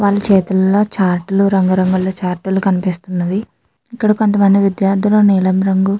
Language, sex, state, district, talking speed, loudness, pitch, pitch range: Telugu, female, Andhra Pradesh, Srikakulam, 120 wpm, -14 LUFS, 195 Hz, 185-200 Hz